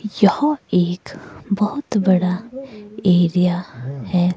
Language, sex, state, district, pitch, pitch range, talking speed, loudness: Hindi, female, Himachal Pradesh, Shimla, 190 Hz, 180-215 Hz, 80 wpm, -19 LUFS